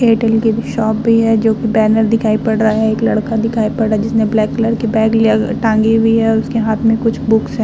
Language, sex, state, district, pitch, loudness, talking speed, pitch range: Hindi, female, Bihar, Vaishali, 225 Hz, -14 LUFS, 275 wpm, 220-225 Hz